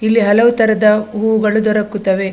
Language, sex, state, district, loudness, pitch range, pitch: Kannada, female, Karnataka, Dakshina Kannada, -13 LUFS, 210-220 Hz, 215 Hz